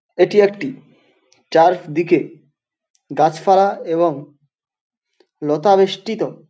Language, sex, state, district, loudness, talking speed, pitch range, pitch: Bengali, male, West Bengal, Paschim Medinipur, -16 LUFS, 75 wpm, 155-205 Hz, 180 Hz